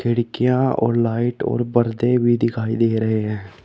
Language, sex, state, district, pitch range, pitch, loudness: Hindi, male, Uttar Pradesh, Shamli, 115-120 Hz, 115 Hz, -19 LUFS